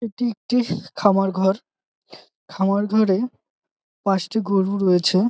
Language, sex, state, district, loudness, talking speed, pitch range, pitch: Bengali, male, West Bengal, Jalpaiguri, -21 LUFS, 100 wpm, 190-220 Hz, 200 Hz